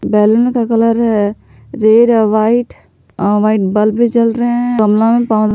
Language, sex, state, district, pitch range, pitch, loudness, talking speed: Hindi, female, Jharkhand, Palamu, 215-235 Hz, 225 Hz, -12 LUFS, 150 wpm